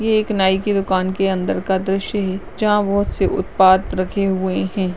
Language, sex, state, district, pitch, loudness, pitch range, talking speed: Hindi, female, Uttarakhand, Uttarkashi, 195 Hz, -18 LUFS, 190-200 Hz, 205 wpm